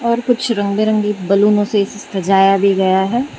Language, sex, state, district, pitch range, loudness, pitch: Hindi, female, Gujarat, Valsad, 195-220 Hz, -15 LUFS, 205 Hz